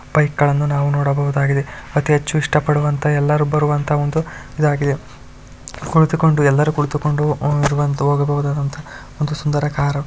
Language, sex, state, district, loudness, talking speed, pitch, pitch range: Kannada, male, Karnataka, Shimoga, -17 LUFS, 95 wpm, 145 Hz, 145-150 Hz